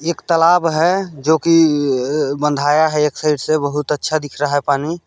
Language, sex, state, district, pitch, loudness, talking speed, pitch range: Hindi, male, Chhattisgarh, Balrampur, 150 Hz, -16 LUFS, 180 wpm, 145-165 Hz